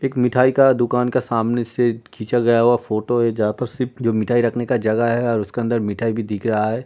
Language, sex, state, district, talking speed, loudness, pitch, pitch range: Hindi, male, Uttar Pradesh, Jyotiba Phule Nagar, 255 wpm, -19 LUFS, 120 Hz, 115-125 Hz